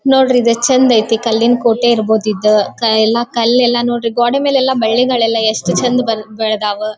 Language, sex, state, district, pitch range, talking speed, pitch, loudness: Kannada, female, Karnataka, Dharwad, 220-245 Hz, 155 wpm, 230 Hz, -13 LUFS